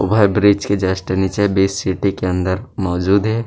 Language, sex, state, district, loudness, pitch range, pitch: Chhattisgarhi, male, Chhattisgarh, Rajnandgaon, -17 LUFS, 95-100 Hz, 95 Hz